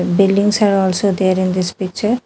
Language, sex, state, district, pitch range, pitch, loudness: English, female, Telangana, Hyderabad, 185-205 Hz, 195 Hz, -15 LUFS